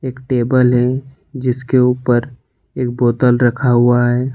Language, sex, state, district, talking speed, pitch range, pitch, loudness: Hindi, male, Jharkhand, Ranchi, 140 wpm, 120-130 Hz, 125 Hz, -15 LUFS